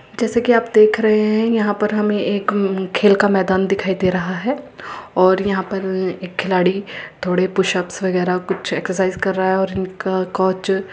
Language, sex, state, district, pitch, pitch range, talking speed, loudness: Hindi, female, Uttar Pradesh, Muzaffarnagar, 190 Hz, 185-210 Hz, 200 wpm, -18 LUFS